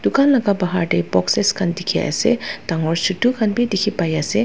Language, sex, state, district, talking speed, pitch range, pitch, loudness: Nagamese, female, Nagaland, Dimapur, 200 wpm, 165-230 Hz, 185 Hz, -18 LUFS